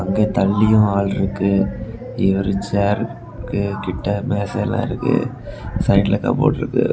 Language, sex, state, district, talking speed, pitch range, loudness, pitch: Tamil, male, Tamil Nadu, Kanyakumari, 105 wpm, 100-110 Hz, -19 LUFS, 100 Hz